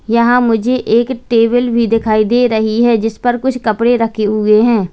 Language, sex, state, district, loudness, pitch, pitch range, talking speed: Hindi, female, Uttar Pradesh, Lalitpur, -13 LUFS, 230 Hz, 220-245 Hz, 195 wpm